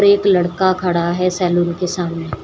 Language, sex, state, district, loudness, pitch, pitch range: Hindi, female, Uttar Pradesh, Shamli, -17 LUFS, 180 Hz, 175-185 Hz